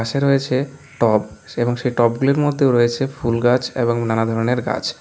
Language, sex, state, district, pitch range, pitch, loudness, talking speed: Bengali, male, West Bengal, Alipurduar, 115-135 Hz, 120 Hz, -18 LUFS, 180 wpm